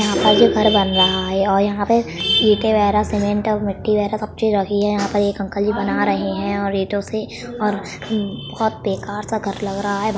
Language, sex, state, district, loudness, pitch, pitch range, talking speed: Hindi, female, Uttar Pradesh, Budaun, -18 LUFS, 205 Hz, 200-215 Hz, 210 wpm